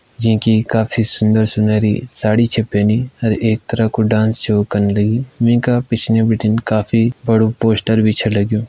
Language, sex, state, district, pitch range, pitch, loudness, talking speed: Hindi, male, Uttarakhand, Uttarkashi, 110-115 Hz, 110 Hz, -15 LUFS, 165 wpm